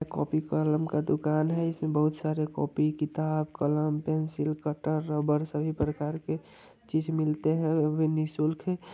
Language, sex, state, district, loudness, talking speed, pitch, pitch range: Hindi, male, Bihar, Vaishali, -29 LUFS, 170 wpm, 155 Hz, 150-155 Hz